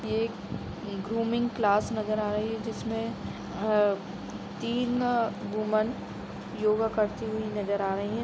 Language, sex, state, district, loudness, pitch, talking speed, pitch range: Hindi, female, Chhattisgarh, Raigarh, -30 LUFS, 215 Hz, 140 wpm, 205-225 Hz